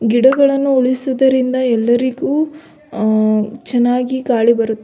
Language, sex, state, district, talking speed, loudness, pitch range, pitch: Kannada, female, Karnataka, Belgaum, 100 wpm, -15 LUFS, 230-265 Hz, 250 Hz